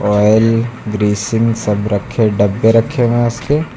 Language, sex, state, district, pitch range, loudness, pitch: Hindi, male, Uttar Pradesh, Lucknow, 105-120 Hz, -14 LUFS, 110 Hz